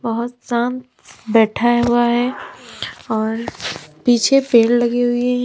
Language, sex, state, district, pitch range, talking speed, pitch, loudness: Hindi, female, Uttar Pradesh, Lalitpur, 235-245 Hz, 120 wpm, 240 Hz, -17 LUFS